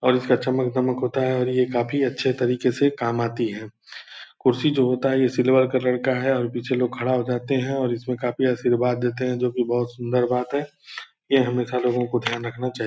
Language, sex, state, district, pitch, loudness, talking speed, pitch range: Hindi, male, Bihar, Purnia, 125 Hz, -22 LUFS, 235 wpm, 120-130 Hz